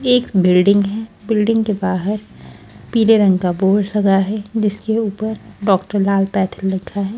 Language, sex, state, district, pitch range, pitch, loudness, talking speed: Hindi, female, Bihar, West Champaran, 195-220 Hz, 205 Hz, -17 LUFS, 160 wpm